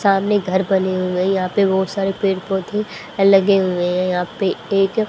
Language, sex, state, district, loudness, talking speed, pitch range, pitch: Hindi, female, Haryana, Charkhi Dadri, -18 LUFS, 200 wpm, 185-200 Hz, 195 Hz